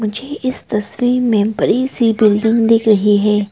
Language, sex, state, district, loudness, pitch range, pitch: Hindi, female, Arunachal Pradesh, Papum Pare, -14 LUFS, 210-245 Hz, 220 Hz